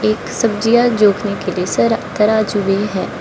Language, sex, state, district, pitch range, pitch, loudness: Hindi, female, Arunachal Pradesh, Lower Dibang Valley, 185-220 Hz, 205 Hz, -15 LUFS